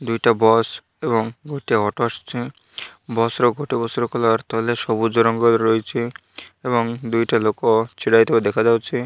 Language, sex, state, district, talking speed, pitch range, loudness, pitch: Odia, male, Odisha, Malkangiri, 150 wpm, 115-120 Hz, -19 LUFS, 115 Hz